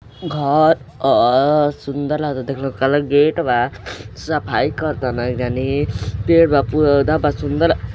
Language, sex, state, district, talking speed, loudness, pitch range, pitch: Hindi, male, Uttar Pradesh, Deoria, 145 wpm, -17 LUFS, 125-150 Hz, 140 Hz